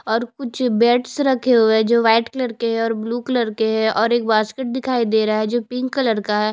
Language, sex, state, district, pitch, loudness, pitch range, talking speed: Hindi, female, Chhattisgarh, Bastar, 230 Hz, -18 LUFS, 220-250 Hz, 255 wpm